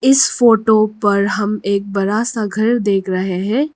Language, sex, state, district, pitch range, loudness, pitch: Hindi, female, Arunachal Pradesh, Lower Dibang Valley, 200-230 Hz, -15 LUFS, 215 Hz